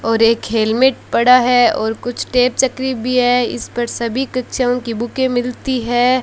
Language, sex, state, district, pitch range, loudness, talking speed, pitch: Hindi, female, Rajasthan, Bikaner, 235-255 Hz, -16 LUFS, 185 wpm, 245 Hz